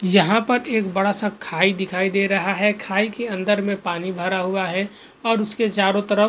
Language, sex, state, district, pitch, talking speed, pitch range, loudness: Hindi, male, Goa, North and South Goa, 200 Hz, 220 wpm, 190-210 Hz, -21 LUFS